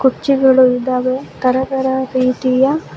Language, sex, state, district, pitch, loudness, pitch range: Kannada, female, Karnataka, Bangalore, 260 Hz, -15 LUFS, 255-265 Hz